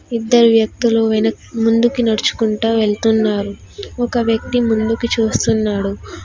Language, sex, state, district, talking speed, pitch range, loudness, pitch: Telugu, female, Telangana, Hyderabad, 95 wpm, 220-235 Hz, -16 LUFS, 225 Hz